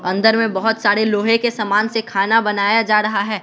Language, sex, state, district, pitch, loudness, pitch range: Hindi, male, Bihar, West Champaran, 215 Hz, -16 LUFS, 205-225 Hz